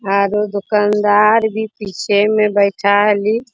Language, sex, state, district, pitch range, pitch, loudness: Hindi, female, Bihar, Bhagalpur, 200-215 Hz, 210 Hz, -14 LUFS